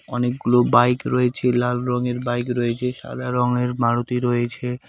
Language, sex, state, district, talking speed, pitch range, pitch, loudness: Bengali, male, West Bengal, Cooch Behar, 135 wpm, 120-125 Hz, 125 Hz, -21 LUFS